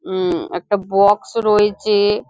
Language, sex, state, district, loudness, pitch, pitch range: Bengali, female, West Bengal, Dakshin Dinajpur, -17 LUFS, 210 Hz, 205-340 Hz